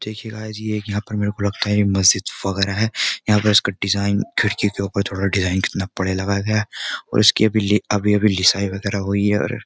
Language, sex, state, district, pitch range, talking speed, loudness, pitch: Hindi, male, Uttar Pradesh, Jyotiba Phule Nagar, 100-105 Hz, 230 wpm, -19 LUFS, 100 Hz